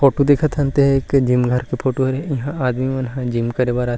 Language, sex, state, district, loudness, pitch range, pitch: Chhattisgarhi, male, Chhattisgarh, Rajnandgaon, -18 LUFS, 125-140 Hz, 130 Hz